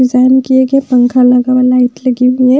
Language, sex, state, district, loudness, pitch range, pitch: Hindi, female, Bihar, West Champaran, -9 LUFS, 250-260 Hz, 255 Hz